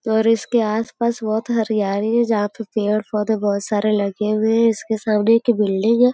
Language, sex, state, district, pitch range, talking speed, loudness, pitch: Hindi, female, Uttar Pradesh, Gorakhpur, 210-230 Hz, 195 wpm, -19 LUFS, 220 Hz